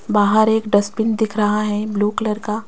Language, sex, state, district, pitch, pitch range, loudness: Hindi, female, Rajasthan, Jaipur, 215 Hz, 210-220 Hz, -18 LUFS